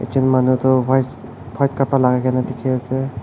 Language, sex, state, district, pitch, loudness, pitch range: Nagamese, male, Nagaland, Kohima, 130 Hz, -18 LUFS, 125-130 Hz